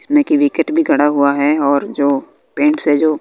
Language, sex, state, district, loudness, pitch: Hindi, female, Bihar, West Champaran, -14 LUFS, 150 Hz